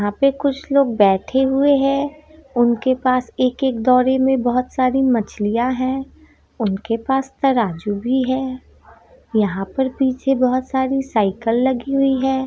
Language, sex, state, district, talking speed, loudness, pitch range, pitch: Hindi, female, Bihar, Gopalganj, 150 wpm, -18 LUFS, 235-270 Hz, 260 Hz